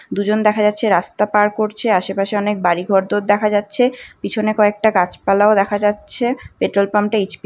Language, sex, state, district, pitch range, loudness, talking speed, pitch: Bengali, female, West Bengal, North 24 Parganas, 200-215 Hz, -17 LUFS, 200 wpm, 210 Hz